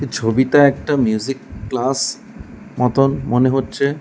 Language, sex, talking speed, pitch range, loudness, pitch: Bengali, male, 105 wpm, 120-140 Hz, -17 LUFS, 130 Hz